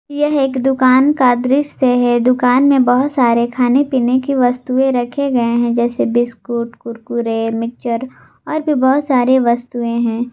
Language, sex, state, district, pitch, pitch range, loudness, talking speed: Hindi, female, Jharkhand, Garhwa, 250 Hz, 240-265 Hz, -15 LUFS, 155 wpm